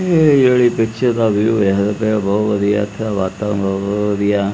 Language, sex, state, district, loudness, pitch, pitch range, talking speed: Punjabi, male, Punjab, Kapurthala, -16 LUFS, 105 Hz, 100-115 Hz, 210 wpm